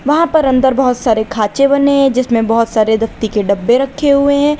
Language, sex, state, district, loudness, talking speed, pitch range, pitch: Hindi, female, Uttar Pradesh, Lalitpur, -12 LUFS, 220 wpm, 225-280 Hz, 260 Hz